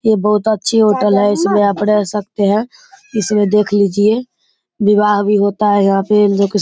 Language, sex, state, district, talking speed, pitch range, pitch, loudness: Hindi, male, Bihar, Begusarai, 180 wpm, 205-215 Hz, 210 Hz, -13 LUFS